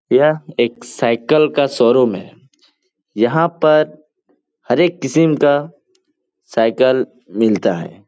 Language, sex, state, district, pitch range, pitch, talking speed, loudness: Hindi, male, Bihar, Lakhisarai, 120-165 Hz, 145 Hz, 110 wpm, -16 LUFS